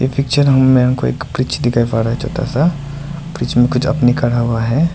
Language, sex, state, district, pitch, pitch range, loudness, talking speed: Hindi, male, Arunachal Pradesh, Lower Dibang Valley, 130 Hz, 120-140 Hz, -15 LUFS, 205 wpm